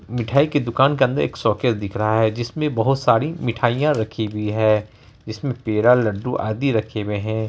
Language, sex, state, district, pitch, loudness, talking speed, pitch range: Hindi, male, Bihar, Araria, 115 Hz, -20 LUFS, 190 wpm, 110-135 Hz